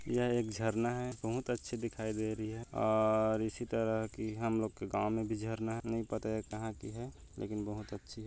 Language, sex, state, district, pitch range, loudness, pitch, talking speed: Hindi, male, Chhattisgarh, Korba, 110-115 Hz, -36 LUFS, 110 Hz, 225 wpm